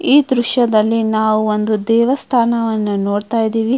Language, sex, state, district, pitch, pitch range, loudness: Kannada, female, Karnataka, Mysore, 225 Hz, 215-240 Hz, -15 LUFS